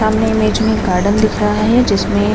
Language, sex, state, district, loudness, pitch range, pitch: Hindi, female, Bihar, Gaya, -14 LUFS, 200-220 Hz, 215 Hz